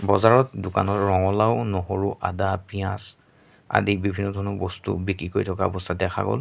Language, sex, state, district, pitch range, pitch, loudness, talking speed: Assamese, male, Assam, Sonitpur, 95-100 Hz, 100 Hz, -24 LUFS, 150 wpm